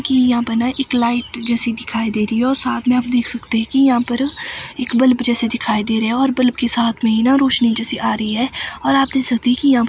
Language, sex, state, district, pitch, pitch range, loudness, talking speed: Hindi, female, Himachal Pradesh, Shimla, 245 Hz, 235-255 Hz, -16 LUFS, 285 wpm